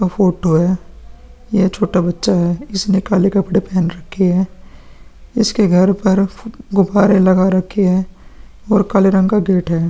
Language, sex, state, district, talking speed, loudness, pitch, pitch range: Hindi, male, Bihar, Vaishali, 155 wpm, -15 LUFS, 190 Hz, 180-200 Hz